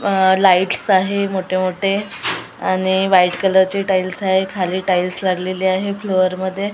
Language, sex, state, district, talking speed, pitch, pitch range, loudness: Marathi, female, Maharashtra, Gondia, 140 wpm, 190 Hz, 185-195 Hz, -17 LUFS